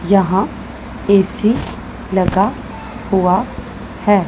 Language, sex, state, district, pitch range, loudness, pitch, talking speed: Hindi, female, Punjab, Pathankot, 185-205 Hz, -16 LUFS, 195 Hz, 70 wpm